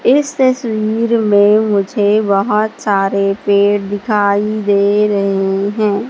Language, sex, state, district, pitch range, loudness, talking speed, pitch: Hindi, female, Madhya Pradesh, Katni, 200-215 Hz, -14 LUFS, 110 wpm, 205 Hz